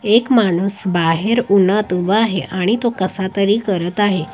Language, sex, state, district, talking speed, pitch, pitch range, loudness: Marathi, female, Maharashtra, Washim, 150 wpm, 200 Hz, 185-215 Hz, -16 LUFS